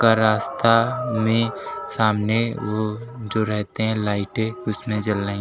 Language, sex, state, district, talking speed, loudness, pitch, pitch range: Hindi, male, Uttar Pradesh, Lucknow, 145 wpm, -22 LUFS, 110 Hz, 105-115 Hz